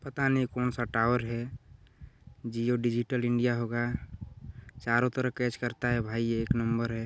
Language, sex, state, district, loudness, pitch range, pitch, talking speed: Hindi, male, Chhattisgarh, Balrampur, -30 LUFS, 115-125 Hz, 120 Hz, 170 wpm